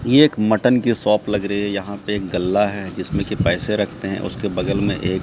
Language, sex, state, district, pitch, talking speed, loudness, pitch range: Hindi, male, Bihar, Katihar, 105 Hz, 265 wpm, -20 LUFS, 100-110 Hz